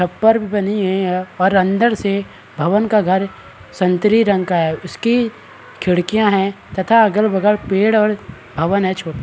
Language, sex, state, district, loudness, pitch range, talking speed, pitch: Hindi, male, Chhattisgarh, Balrampur, -16 LUFS, 185-210 Hz, 175 wpm, 195 Hz